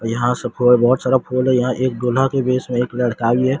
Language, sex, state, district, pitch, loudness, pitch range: Hindi, male, Odisha, Sambalpur, 125 Hz, -17 LUFS, 120-130 Hz